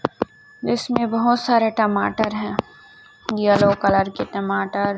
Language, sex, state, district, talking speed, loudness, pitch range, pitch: Hindi, female, Chhattisgarh, Raipur, 110 wpm, -20 LUFS, 200-245 Hz, 220 Hz